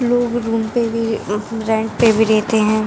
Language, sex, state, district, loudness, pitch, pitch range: Hindi, female, Jharkhand, Jamtara, -17 LUFS, 225 Hz, 220-230 Hz